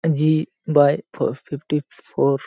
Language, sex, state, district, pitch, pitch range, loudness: Bengali, male, Jharkhand, Jamtara, 150 Hz, 140-155 Hz, -21 LUFS